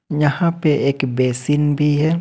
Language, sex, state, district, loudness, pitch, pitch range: Hindi, male, Jharkhand, Ranchi, -18 LUFS, 150 Hz, 140-150 Hz